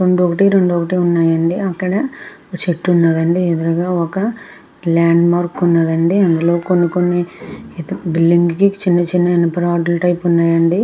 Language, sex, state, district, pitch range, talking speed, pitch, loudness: Telugu, female, Andhra Pradesh, Krishna, 170-180 Hz, 100 wpm, 175 Hz, -15 LUFS